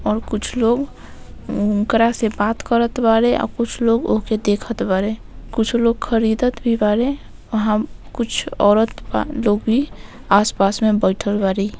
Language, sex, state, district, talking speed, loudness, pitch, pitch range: Bhojpuri, female, Bihar, Saran, 160 wpm, -18 LUFS, 225 Hz, 210-235 Hz